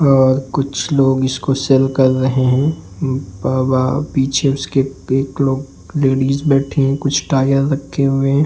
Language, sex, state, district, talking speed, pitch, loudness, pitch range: Hindi, male, Uttar Pradesh, Jalaun, 155 wpm, 135 Hz, -16 LUFS, 130-140 Hz